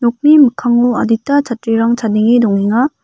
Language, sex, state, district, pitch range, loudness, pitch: Garo, female, Meghalaya, West Garo Hills, 225-250 Hz, -12 LUFS, 235 Hz